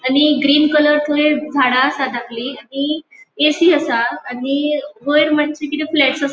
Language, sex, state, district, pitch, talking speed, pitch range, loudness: Konkani, female, Goa, North and South Goa, 295 Hz, 160 wpm, 270-300 Hz, -16 LUFS